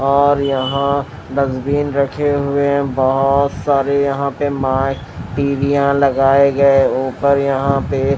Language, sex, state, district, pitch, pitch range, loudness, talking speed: Hindi, male, Maharashtra, Washim, 140 Hz, 135-140 Hz, -16 LUFS, 125 wpm